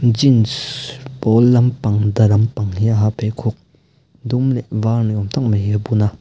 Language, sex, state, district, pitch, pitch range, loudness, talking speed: Mizo, male, Mizoram, Aizawl, 110 Hz, 105-125 Hz, -17 LUFS, 205 wpm